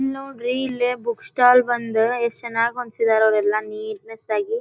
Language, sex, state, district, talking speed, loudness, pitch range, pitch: Kannada, female, Karnataka, Dharwad, 170 wpm, -21 LUFS, 220-250 Hz, 235 Hz